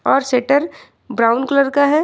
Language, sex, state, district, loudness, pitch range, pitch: Hindi, female, Jharkhand, Ranchi, -16 LUFS, 250-285 Hz, 275 Hz